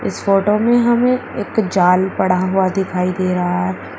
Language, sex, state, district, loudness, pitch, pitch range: Hindi, female, Uttar Pradesh, Shamli, -16 LUFS, 190 Hz, 180-210 Hz